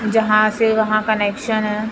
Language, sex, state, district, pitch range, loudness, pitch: Hindi, female, Chhattisgarh, Bilaspur, 215-220 Hz, -17 LUFS, 215 Hz